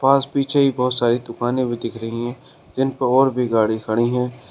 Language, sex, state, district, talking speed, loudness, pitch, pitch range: Hindi, male, Uttar Pradesh, Shamli, 215 wpm, -20 LUFS, 125 Hz, 115-135 Hz